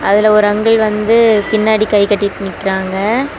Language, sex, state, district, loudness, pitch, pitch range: Tamil, female, Tamil Nadu, Kanyakumari, -12 LUFS, 210 Hz, 200-220 Hz